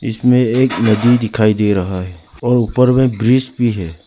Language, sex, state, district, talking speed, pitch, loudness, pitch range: Hindi, male, Arunachal Pradesh, Lower Dibang Valley, 190 wpm, 115 Hz, -14 LUFS, 105-125 Hz